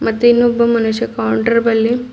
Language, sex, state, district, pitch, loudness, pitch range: Kannada, female, Karnataka, Bidar, 230 Hz, -14 LUFS, 225-240 Hz